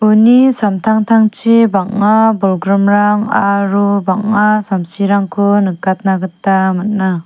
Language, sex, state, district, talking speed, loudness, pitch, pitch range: Garo, female, Meghalaya, South Garo Hills, 80 wpm, -12 LUFS, 200 Hz, 190-215 Hz